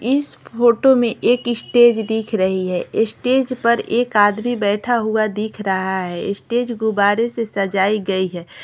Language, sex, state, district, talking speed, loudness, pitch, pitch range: Hindi, female, Bihar, Patna, 165 wpm, -18 LUFS, 220 Hz, 200-240 Hz